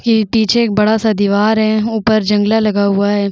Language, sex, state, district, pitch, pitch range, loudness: Hindi, female, Chhattisgarh, Bastar, 215 Hz, 205-220 Hz, -13 LUFS